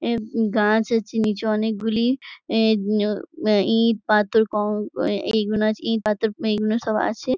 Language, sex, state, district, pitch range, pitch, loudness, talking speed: Bengali, female, West Bengal, Jhargram, 210-225 Hz, 220 Hz, -21 LUFS, 180 wpm